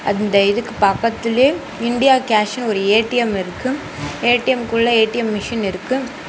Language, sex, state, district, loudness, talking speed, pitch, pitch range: Tamil, female, Tamil Nadu, Namakkal, -17 LUFS, 105 wpm, 230 Hz, 210-245 Hz